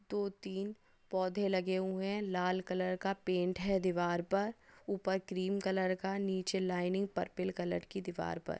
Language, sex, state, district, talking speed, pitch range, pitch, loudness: Hindi, female, Maharashtra, Dhule, 170 wpm, 185-195 Hz, 190 Hz, -36 LUFS